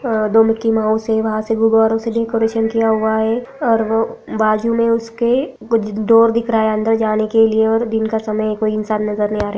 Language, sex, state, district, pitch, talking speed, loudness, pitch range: Hindi, female, Bihar, Araria, 225 Hz, 230 wpm, -16 LUFS, 215-230 Hz